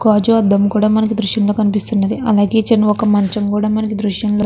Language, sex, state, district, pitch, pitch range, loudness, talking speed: Telugu, female, Andhra Pradesh, Krishna, 210 Hz, 205-220 Hz, -14 LUFS, 230 wpm